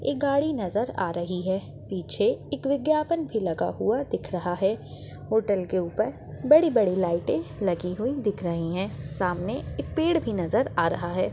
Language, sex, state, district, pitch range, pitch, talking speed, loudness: Hindi, female, Chhattisgarh, Bastar, 175-260 Hz, 190 Hz, 175 wpm, -26 LUFS